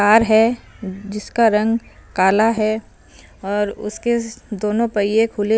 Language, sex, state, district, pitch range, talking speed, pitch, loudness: Hindi, female, Punjab, Fazilka, 205-225 Hz, 105 wpm, 215 Hz, -18 LUFS